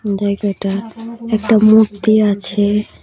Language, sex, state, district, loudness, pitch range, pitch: Bengali, female, Tripura, West Tripura, -14 LUFS, 200-220 Hz, 210 Hz